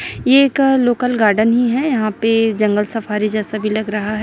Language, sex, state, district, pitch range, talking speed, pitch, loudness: Hindi, female, Chhattisgarh, Raipur, 215-245 Hz, 215 wpm, 220 Hz, -16 LUFS